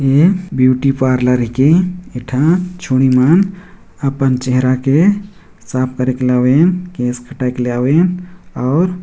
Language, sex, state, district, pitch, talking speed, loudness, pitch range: Hindi, male, Chhattisgarh, Jashpur, 135 Hz, 120 wpm, -14 LUFS, 130-180 Hz